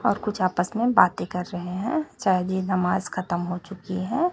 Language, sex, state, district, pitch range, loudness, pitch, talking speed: Hindi, female, Chhattisgarh, Raipur, 180-210 Hz, -25 LUFS, 185 Hz, 210 wpm